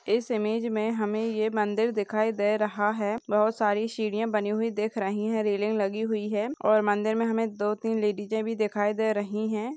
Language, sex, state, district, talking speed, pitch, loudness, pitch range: Hindi, female, Maharashtra, Pune, 205 wpm, 215 Hz, -27 LUFS, 210-220 Hz